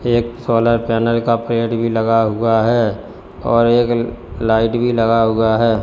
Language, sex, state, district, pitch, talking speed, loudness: Hindi, male, Uttar Pradesh, Lalitpur, 115 Hz, 165 wpm, -16 LUFS